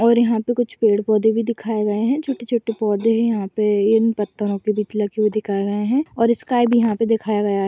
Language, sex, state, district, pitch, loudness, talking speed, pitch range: Hindi, female, Uttar Pradesh, Jyotiba Phule Nagar, 220 Hz, -19 LUFS, 240 wpm, 210-235 Hz